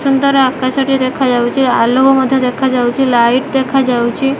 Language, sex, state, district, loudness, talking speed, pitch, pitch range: Odia, female, Odisha, Malkangiri, -12 LUFS, 125 wpm, 260 Hz, 245-270 Hz